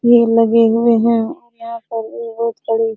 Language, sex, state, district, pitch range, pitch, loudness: Hindi, female, Bihar, Araria, 225-235 Hz, 230 Hz, -15 LUFS